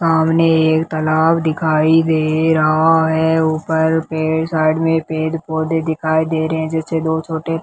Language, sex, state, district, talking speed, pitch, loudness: Hindi, male, Rajasthan, Bikaner, 165 wpm, 160 Hz, -16 LUFS